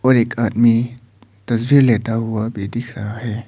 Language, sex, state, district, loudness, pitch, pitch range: Hindi, male, Arunachal Pradesh, Papum Pare, -18 LUFS, 115 Hz, 110-120 Hz